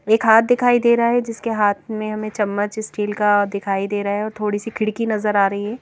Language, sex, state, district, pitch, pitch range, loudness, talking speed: Hindi, female, Madhya Pradesh, Bhopal, 215 Hz, 205-225 Hz, -19 LUFS, 260 wpm